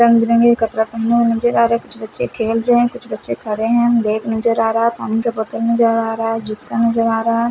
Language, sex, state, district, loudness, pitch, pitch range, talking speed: Hindi, male, Punjab, Fazilka, -16 LUFS, 230 Hz, 225-235 Hz, 255 wpm